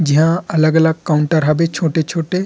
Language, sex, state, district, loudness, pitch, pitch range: Chhattisgarhi, male, Chhattisgarh, Rajnandgaon, -15 LUFS, 160 Hz, 155-165 Hz